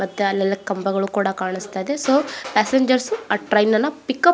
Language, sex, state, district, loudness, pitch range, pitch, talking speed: Kannada, female, Karnataka, Belgaum, -20 LUFS, 195-265 Hz, 210 Hz, 150 wpm